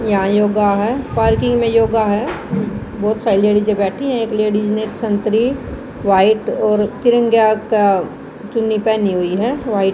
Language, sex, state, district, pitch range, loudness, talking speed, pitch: Hindi, female, Haryana, Jhajjar, 205-225 Hz, -16 LUFS, 155 wpm, 215 Hz